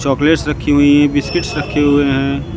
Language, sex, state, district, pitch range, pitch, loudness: Hindi, female, Uttar Pradesh, Lucknow, 145-150 Hz, 145 Hz, -14 LUFS